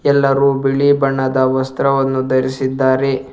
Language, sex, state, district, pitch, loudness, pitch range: Kannada, male, Karnataka, Bangalore, 135 Hz, -15 LUFS, 130-135 Hz